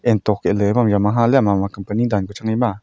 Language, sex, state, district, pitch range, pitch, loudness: Wancho, male, Arunachal Pradesh, Longding, 100-115 Hz, 105 Hz, -18 LUFS